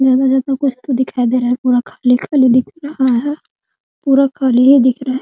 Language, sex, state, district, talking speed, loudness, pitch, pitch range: Hindi, female, Bihar, Muzaffarpur, 240 wpm, -14 LUFS, 260 Hz, 250-270 Hz